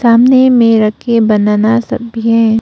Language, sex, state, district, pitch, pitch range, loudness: Hindi, female, Arunachal Pradesh, Papum Pare, 230 Hz, 220-235 Hz, -10 LUFS